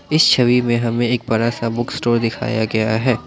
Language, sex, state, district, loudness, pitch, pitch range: Hindi, male, Assam, Kamrup Metropolitan, -17 LUFS, 120 Hz, 115-125 Hz